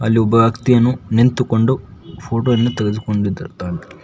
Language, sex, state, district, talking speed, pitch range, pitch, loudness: Kannada, male, Karnataka, Koppal, 105 wpm, 105-125 Hz, 115 Hz, -17 LUFS